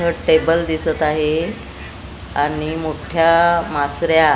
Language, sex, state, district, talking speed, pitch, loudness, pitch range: Marathi, female, Maharashtra, Gondia, 95 wpm, 155 Hz, -17 LUFS, 145-165 Hz